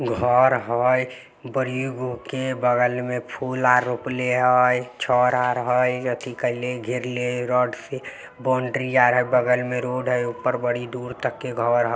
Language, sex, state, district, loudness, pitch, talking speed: Maithili, male, Bihar, Samastipur, -22 LUFS, 125 Hz, 160 wpm